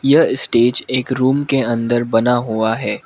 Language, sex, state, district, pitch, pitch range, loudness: Hindi, male, Mizoram, Aizawl, 125 Hz, 115-130 Hz, -16 LUFS